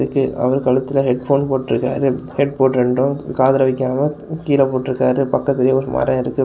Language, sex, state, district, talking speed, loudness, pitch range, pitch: Tamil, male, Tamil Nadu, Kanyakumari, 160 wpm, -17 LUFS, 130-140 Hz, 130 Hz